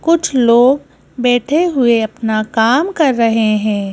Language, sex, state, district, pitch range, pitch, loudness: Hindi, female, Madhya Pradesh, Bhopal, 220-285 Hz, 240 Hz, -13 LUFS